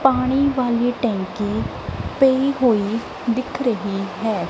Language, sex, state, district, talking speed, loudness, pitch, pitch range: Punjabi, female, Punjab, Kapurthala, 105 wpm, -21 LUFS, 240 Hz, 215-260 Hz